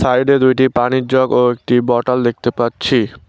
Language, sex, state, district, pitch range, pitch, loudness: Bengali, male, West Bengal, Cooch Behar, 120-130 Hz, 125 Hz, -14 LUFS